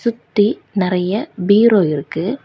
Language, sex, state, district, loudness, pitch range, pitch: Tamil, female, Tamil Nadu, Kanyakumari, -16 LUFS, 185-230 Hz, 205 Hz